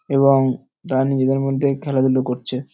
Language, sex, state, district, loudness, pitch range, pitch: Bengali, male, West Bengal, North 24 Parganas, -19 LUFS, 130-135 Hz, 135 Hz